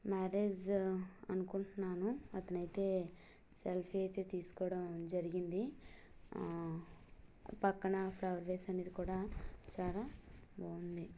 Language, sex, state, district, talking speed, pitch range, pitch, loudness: Telugu, female, Andhra Pradesh, Visakhapatnam, 60 wpm, 180-195 Hz, 185 Hz, -42 LUFS